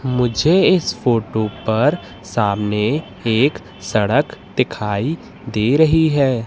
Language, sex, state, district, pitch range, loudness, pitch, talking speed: Hindi, male, Madhya Pradesh, Katni, 105-145 Hz, -18 LUFS, 115 Hz, 100 wpm